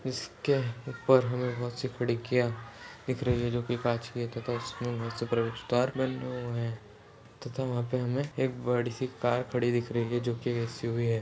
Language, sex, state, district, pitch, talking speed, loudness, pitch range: Hindi, male, Uttar Pradesh, Etah, 120 Hz, 190 wpm, -31 LUFS, 115-125 Hz